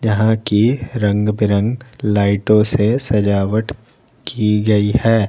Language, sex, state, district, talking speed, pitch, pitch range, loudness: Hindi, male, Jharkhand, Garhwa, 115 wpm, 105 Hz, 105-115 Hz, -16 LUFS